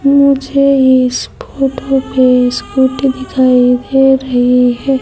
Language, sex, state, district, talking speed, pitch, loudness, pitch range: Hindi, female, Madhya Pradesh, Umaria, 105 wpm, 260 Hz, -11 LUFS, 250-270 Hz